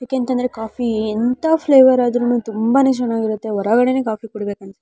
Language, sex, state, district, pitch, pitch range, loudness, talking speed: Kannada, male, Karnataka, Mysore, 240 Hz, 220-255 Hz, -17 LUFS, 175 wpm